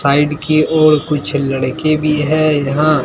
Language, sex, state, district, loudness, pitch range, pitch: Hindi, male, Bihar, Katihar, -14 LUFS, 145-155 Hz, 150 Hz